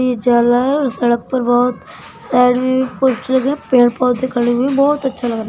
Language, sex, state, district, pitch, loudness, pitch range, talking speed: Hindi, female, Uttar Pradesh, Budaun, 250 Hz, -15 LUFS, 240-260 Hz, 230 wpm